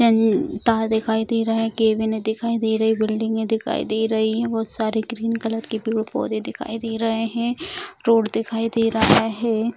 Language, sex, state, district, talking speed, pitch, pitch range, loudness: Hindi, female, Bihar, Sitamarhi, 190 wpm, 225 Hz, 220-230 Hz, -21 LUFS